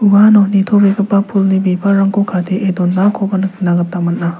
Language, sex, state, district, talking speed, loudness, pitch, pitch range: Garo, male, Meghalaya, South Garo Hills, 120 wpm, -13 LUFS, 195 Hz, 180-200 Hz